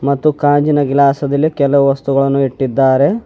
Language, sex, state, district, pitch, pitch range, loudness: Kannada, male, Karnataka, Bidar, 140 Hz, 135-145 Hz, -13 LUFS